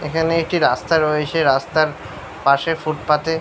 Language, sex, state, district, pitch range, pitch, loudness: Bengali, male, West Bengal, Paschim Medinipur, 150-165 Hz, 155 Hz, -18 LUFS